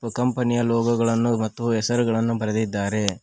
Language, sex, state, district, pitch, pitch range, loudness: Kannada, male, Karnataka, Koppal, 115 Hz, 110-120 Hz, -22 LUFS